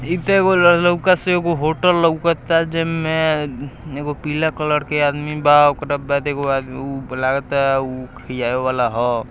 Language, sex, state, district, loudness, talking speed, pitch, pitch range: Hindi, male, Bihar, East Champaran, -18 LUFS, 160 wpm, 145 Hz, 135-165 Hz